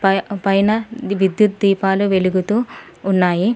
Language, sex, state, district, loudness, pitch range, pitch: Telugu, female, Telangana, Adilabad, -17 LUFS, 190-210 Hz, 195 Hz